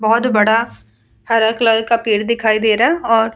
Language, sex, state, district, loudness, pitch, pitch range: Hindi, female, Bihar, Vaishali, -15 LUFS, 225 Hz, 215-230 Hz